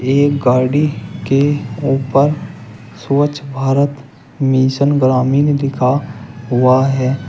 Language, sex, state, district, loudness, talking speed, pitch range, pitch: Hindi, male, Uttar Pradesh, Shamli, -15 LUFS, 90 wpm, 130-145 Hz, 135 Hz